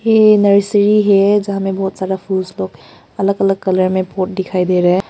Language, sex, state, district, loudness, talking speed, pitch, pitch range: Hindi, female, Arunachal Pradesh, Papum Pare, -14 LUFS, 210 wpm, 195 Hz, 185-200 Hz